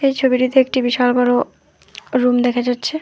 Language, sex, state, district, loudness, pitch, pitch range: Bengali, female, West Bengal, Alipurduar, -16 LUFS, 250 Hz, 245-265 Hz